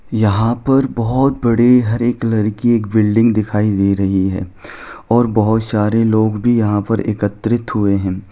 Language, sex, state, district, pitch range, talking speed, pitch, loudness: Hindi, male, Jharkhand, Sahebganj, 105-115 Hz, 165 wpm, 110 Hz, -15 LUFS